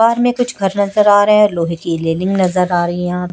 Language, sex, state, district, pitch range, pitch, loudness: Hindi, female, Chhattisgarh, Raipur, 175-210 Hz, 185 Hz, -14 LUFS